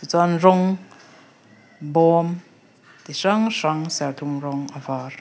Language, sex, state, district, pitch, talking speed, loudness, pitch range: Mizo, female, Mizoram, Aizawl, 165 Hz, 115 wpm, -21 LUFS, 145-185 Hz